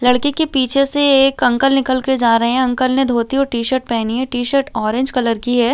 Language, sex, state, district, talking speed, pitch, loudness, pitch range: Hindi, female, Chhattisgarh, Balrampur, 260 wpm, 255 Hz, -15 LUFS, 240-270 Hz